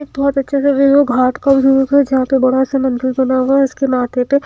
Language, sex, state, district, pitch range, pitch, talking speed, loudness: Hindi, female, Himachal Pradesh, Shimla, 260-275 Hz, 270 Hz, 255 wpm, -14 LUFS